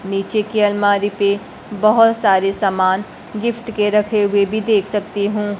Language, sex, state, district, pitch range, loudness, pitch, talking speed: Hindi, female, Bihar, Kaimur, 200-215 Hz, -17 LUFS, 205 Hz, 160 wpm